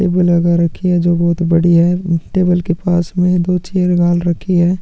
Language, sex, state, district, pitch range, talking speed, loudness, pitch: Hindi, male, Chhattisgarh, Sukma, 170-180 Hz, 225 wpm, -14 LUFS, 175 Hz